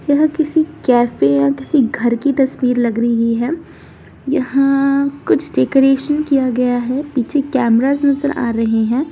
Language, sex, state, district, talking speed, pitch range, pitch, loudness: Hindi, female, Bihar, Darbhanga, 145 wpm, 240-285 Hz, 270 Hz, -15 LUFS